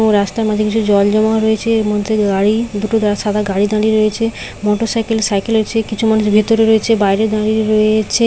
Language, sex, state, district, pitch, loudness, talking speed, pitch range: Bengali, female, West Bengal, Paschim Medinipur, 215 Hz, -14 LUFS, 205 wpm, 210-220 Hz